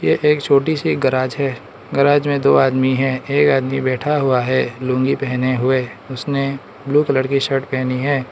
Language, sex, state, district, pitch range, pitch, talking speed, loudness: Hindi, male, Arunachal Pradesh, Lower Dibang Valley, 130-140 Hz, 135 Hz, 180 wpm, -17 LUFS